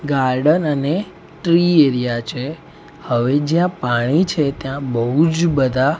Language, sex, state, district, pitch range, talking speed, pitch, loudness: Gujarati, male, Gujarat, Gandhinagar, 130-165 Hz, 120 wpm, 145 Hz, -17 LUFS